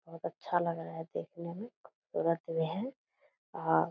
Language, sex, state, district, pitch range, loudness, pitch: Hindi, female, Bihar, Purnia, 165-180 Hz, -36 LUFS, 170 Hz